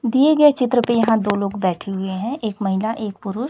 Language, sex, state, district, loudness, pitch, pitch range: Hindi, female, Chhattisgarh, Raipur, -19 LUFS, 220 Hz, 200-245 Hz